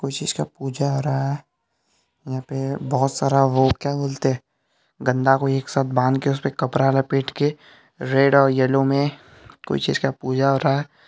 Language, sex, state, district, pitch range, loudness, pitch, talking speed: Hindi, male, Bihar, Supaul, 130-140 Hz, -21 LUFS, 135 Hz, 190 wpm